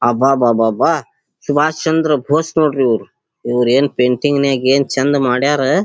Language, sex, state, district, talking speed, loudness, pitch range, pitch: Kannada, male, Karnataka, Dharwad, 110 wpm, -15 LUFS, 125-150 Hz, 140 Hz